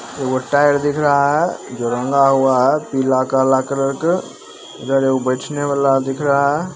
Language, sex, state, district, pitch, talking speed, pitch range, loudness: Maithili, male, Bihar, Begusarai, 135 Hz, 170 wpm, 130-145 Hz, -17 LUFS